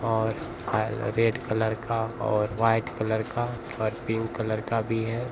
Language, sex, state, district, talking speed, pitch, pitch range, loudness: Maithili, male, Bihar, Bhagalpur, 170 wpm, 110 Hz, 110-115 Hz, -28 LUFS